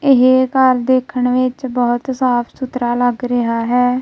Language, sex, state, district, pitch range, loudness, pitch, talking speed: Punjabi, female, Punjab, Kapurthala, 245-260 Hz, -15 LUFS, 250 Hz, 150 wpm